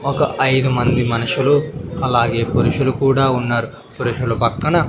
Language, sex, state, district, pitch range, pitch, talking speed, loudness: Telugu, male, Andhra Pradesh, Sri Satya Sai, 120-140 Hz, 130 Hz, 120 wpm, -17 LUFS